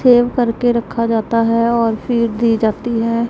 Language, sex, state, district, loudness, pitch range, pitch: Hindi, female, Punjab, Pathankot, -16 LUFS, 230-240 Hz, 230 Hz